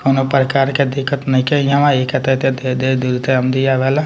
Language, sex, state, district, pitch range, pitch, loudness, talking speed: Bhojpuri, male, Bihar, Muzaffarpur, 130-140 Hz, 135 Hz, -15 LUFS, 160 wpm